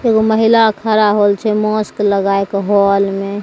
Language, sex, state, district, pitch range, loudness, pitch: Maithili, female, Bihar, Begusarai, 200-220 Hz, -13 LUFS, 205 Hz